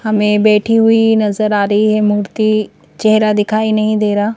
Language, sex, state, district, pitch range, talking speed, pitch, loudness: Hindi, female, Madhya Pradesh, Bhopal, 210-215 Hz, 180 wpm, 215 Hz, -13 LUFS